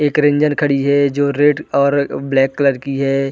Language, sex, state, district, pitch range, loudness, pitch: Hindi, male, Chhattisgarh, Bilaspur, 135-145 Hz, -15 LUFS, 140 Hz